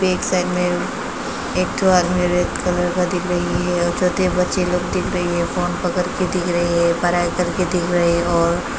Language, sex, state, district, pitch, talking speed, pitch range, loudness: Hindi, female, Arunachal Pradesh, Papum Pare, 180 Hz, 225 wpm, 175-180 Hz, -19 LUFS